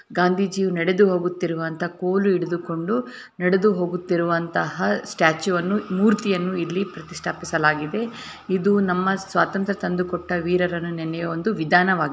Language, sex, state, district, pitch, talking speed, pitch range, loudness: Kannada, female, Karnataka, Bellary, 180 Hz, 105 wpm, 170-195 Hz, -22 LUFS